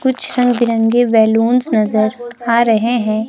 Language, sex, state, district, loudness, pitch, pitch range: Hindi, female, Himachal Pradesh, Shimla, -14 LUFS, 235 Hz, 220-245 Hz